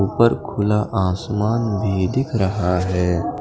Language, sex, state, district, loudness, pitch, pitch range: Hindi, male, Punjab, Fazilka, -20 LUFS, 105 Hz, 95-115 Hz